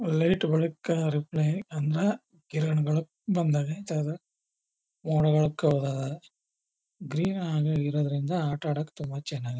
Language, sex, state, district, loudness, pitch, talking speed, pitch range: Kannada, male, Karnataka, Chamarajanagar, -28 LUFS, 155 Hz, 75 wpm, 150-165 Hz